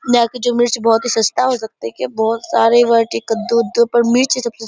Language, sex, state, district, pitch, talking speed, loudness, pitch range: Hindi, female, Bihar, Purnia, 235 Hz, 245 wpm, -15 LUFS, 225-240 Hz